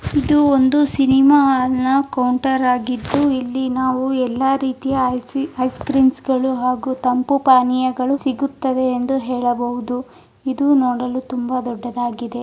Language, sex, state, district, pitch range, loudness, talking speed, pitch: Kannada, female, Karnataka, Raichur, 250-270 Hz, -18 LUFS, 115 wpm, 260 Hz